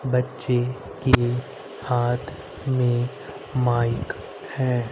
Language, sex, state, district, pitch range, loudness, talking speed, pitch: Hindi, male, Haryana, Rohtak, 120-130 Hz, -24 LUFS, 75 wpm, 125 Hz